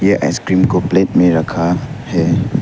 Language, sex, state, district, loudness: Hindi, male, Arunachal Pradesh, Papum Pare, -14 LUFS